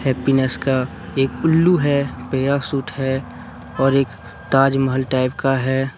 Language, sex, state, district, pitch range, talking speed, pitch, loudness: Hindi, male, Jharkhand, Deoghar, 130-135 Hz, 130 wpm, 135 Hz, -19 LUFS